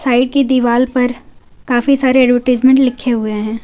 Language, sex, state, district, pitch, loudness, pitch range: Hindi, female, Jharkhand, Garhwa, 250 Hz, -13 LUFS, 240-260 Hz